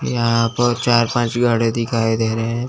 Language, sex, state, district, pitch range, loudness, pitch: Hindi, male, Chandigarh, Chandigarh, 115-120 Hz, -18 LUFS, 115 Hz